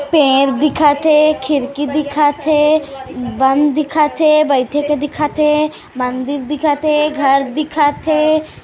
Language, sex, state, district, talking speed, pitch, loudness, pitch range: Hindi, female, Chhattisgarh, Kabirdham, 130 wpm, 295 Hz, -14 LUFS, 280-305 Hz